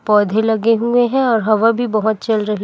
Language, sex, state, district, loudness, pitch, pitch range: Hindi, female, Chhattisgarh, Raipur, -15 LUFS, 225 Hz, 215-230 Hz